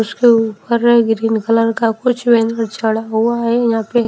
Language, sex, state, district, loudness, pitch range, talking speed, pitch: Hindi, female, Himachal Pradesh, Shimla, -15 LUFS, 225-235 Hz, 160 wpm, 230 Hz